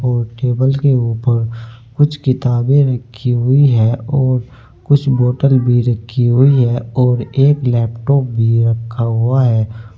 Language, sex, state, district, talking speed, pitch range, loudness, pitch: Hindi, male, Uttar Pradesh, Saharanpur, 140 wpm, 115-130 Hz, -14 LUFS, 125 Hz